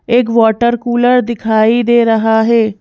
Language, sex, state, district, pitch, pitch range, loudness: Hindi, female, Madhya Pradesh, Bhopal, 235 Hz, 225-240 Hz, -11 LUFS